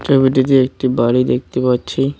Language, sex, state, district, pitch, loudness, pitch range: Bengali, male, West Bengal, Cooch Behar, 130 Hz, -15 LUFS, 125-135 Hz